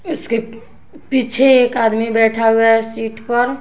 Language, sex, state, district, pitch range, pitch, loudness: Hindi, female, Bihar, West Champaran, 225-250 Hz, 230 Hz, -15 LUFS